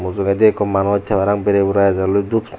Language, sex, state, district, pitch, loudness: Chakma, male, Tripura, Unakoti, 100 Hz, -16 LUFS